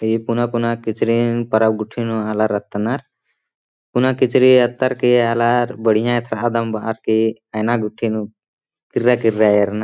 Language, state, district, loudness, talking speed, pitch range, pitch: Kurukh, Chhattisgarh, Jashpur, -18 LUFS, 140 wpm, 110-120 Hz, 115 Hz